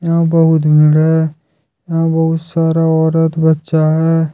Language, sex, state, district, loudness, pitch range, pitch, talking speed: Hindi, male, Jharkhand, Deoghar, -13 LUFS, 155-165 Hz, 160 Hz, 140 wpm